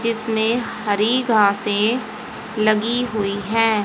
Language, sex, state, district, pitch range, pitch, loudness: Hindi, female, Haryana, Jhajjar, 210-230 Hz, 220 Hz, -19 LUFS